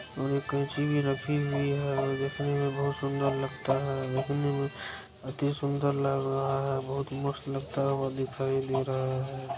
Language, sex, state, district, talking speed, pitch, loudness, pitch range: Hindi, male, Bihar, Araria, 190 wpm, 135 Hz, -30 LUFS, 135-140 Hz